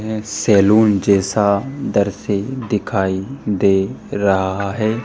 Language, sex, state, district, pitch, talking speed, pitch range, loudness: Hindi, male, Rajasthan, Jaipur, 100 Hz, 95 wpm, 100-110 Hz, -17 LUFS